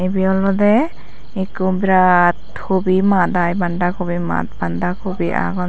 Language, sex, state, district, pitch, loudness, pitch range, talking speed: Chakma, female, Tripura, Dhalai, 185 Hz, -17 LUFS, 175-190 Hz, 135 wpm